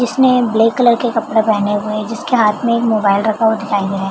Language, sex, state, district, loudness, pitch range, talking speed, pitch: Hindi, female, Bihar, Begusarai, -14 LUFS, 210-240 Hz, 280 wpm, 220 Hz